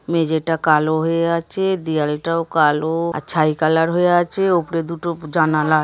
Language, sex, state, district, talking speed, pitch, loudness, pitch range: Bengali, female, West Bengal, Dakshin Dinajpur, 155 wpm, 165 Hz, -18 LUFS, 155-170 Hz